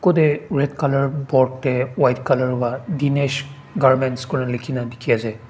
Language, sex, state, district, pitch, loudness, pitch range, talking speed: Nagamese, male, Nagaland, Dimapur, 135 Hz, -20 LUFS, 125-145 Hz, 155 wpm